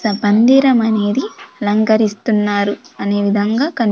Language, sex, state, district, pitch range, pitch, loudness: Telugu, female, Andhra Pradesh, Sri Satya Sai, 205-230 Hz, 215 Hz, -15 LUFS